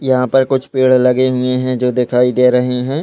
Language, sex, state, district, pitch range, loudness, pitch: Hindi, male, Chhattisgarh, Balrampur, 125-130 Hz, -14 LUFS, 125 Hz